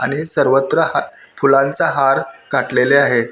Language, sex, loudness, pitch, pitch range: Marathi, male, -15 LUFS, 135 Hz, 135-140 Hz